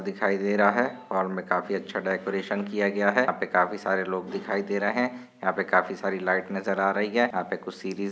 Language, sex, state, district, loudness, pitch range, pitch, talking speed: Hindi, male, Maharashtra, Sindhudurg, -26 LUFS, 95-105 Hz, 100 Hz, 260 wpm